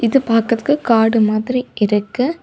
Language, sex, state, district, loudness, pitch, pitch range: Tamil, female, Tamil Nadu, Kanyakumari, -16 LUFS, 230 Hz, 220-255 Hz